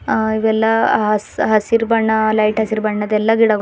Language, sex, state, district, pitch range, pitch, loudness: Kannada, female, Karnataka, Bidar, 215-220 Hz, 220 Hz, -16 LUFS